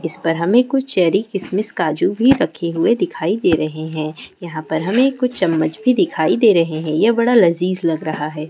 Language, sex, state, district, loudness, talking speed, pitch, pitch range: Hindi, female, Bihar, East Champaran, -17 LUFS, 210 wpm, 170 Hz, 160-230 Hz